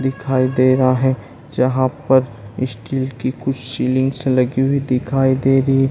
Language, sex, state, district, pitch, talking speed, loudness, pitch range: Hindi, male, Bihar, Saran, 130 Hz, 165 wpm, -17 LUFS, 125-135 Hz